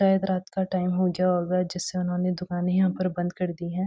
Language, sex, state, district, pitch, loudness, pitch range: Hindi, female, Uttarakhand, Uttarkashi, 180 Hz, -26 LUFS, 180-185 Hz